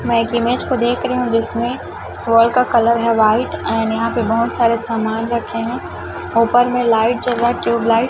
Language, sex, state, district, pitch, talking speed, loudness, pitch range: Hindi, female, Chhattisgarh, Raipur, 235 Hz, 215 wpm, -16 LUFS, 230-240 Hz